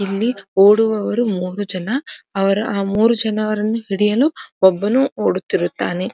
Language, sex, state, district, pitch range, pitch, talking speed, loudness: Kannada, female, Karnataka, Dharwad, 195-230 Hz, 210 Hz, 105 wpm, -17 LUFS